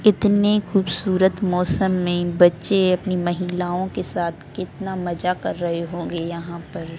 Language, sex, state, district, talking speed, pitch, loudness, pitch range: Hindi, female, Delhi, New Delhi, 155 wpm, 180 Hz, -21 LUFS, 170-190 Hz